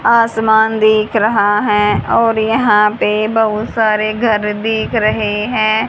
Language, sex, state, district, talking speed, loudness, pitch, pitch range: Hindi, female, Haryana, Jhajjar, 130 wpm, -13 LUFS, 215 Hz, 210-225 Hz